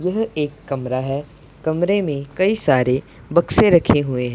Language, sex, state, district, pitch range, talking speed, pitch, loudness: Hindi, male, Punjab, Pathankot, 130-175 Hz, 150 wpm, 145 Hz, -19 LUFS